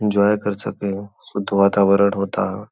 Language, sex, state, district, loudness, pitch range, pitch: Hindi, male, Uttar Pradesh, Gorakhpur, -19 LUFS, 100-105 Hz, 100 Hz